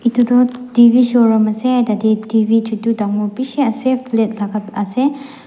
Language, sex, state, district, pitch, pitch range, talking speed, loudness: Nagamese, female, Nagaland, Dimapur, 230 Hz, 220-250 Hz, 155 wpm, -15 LUFS